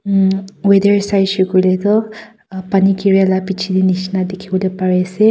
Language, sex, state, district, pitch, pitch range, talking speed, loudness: Nagamese, female, Nagaland, Kohima, 190 Hz, 185-200 Hz, 145 wpm, -15 LUFS